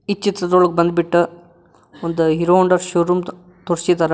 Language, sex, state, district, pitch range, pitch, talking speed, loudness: Kannada, male, Karnataka, Koppal, 170-180 Hz, 175 Hz, 115 wpm, -17 LUFS